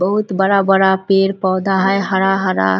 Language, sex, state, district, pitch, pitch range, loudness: Hindi, female, Bihar, Muzaffarpur, 195 Hz, 190-195 Hz, -15 LUFS